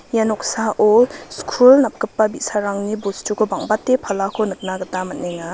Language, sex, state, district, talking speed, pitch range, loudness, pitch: Garo, female, Meghalaya, West Garo Hills, 120 wpm, 195-220 Hz, -18 LUFS, 210 Hz